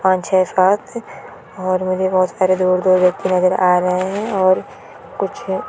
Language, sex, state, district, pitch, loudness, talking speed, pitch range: Hindi, female, West Bengal, Purulia, 185 Hz, -16 LUFS, 160 wpm, 185-190 Hz